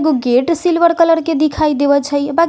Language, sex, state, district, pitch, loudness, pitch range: Hindi, female, Bihar, West Champaran, 310 Hz, -14 LUFS, 285-335 Hz